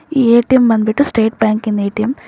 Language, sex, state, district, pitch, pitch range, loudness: Kannada, female, Karnataka, Bijapur, 225 Hz, 215-255 Hz, -13 LUFS